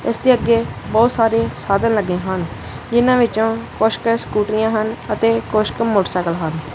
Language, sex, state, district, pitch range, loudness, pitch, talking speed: Punjabi, male, Punjab, Kapurthala, 200-230 Hz, -17 LUFS, 220 Hz, 140 wpm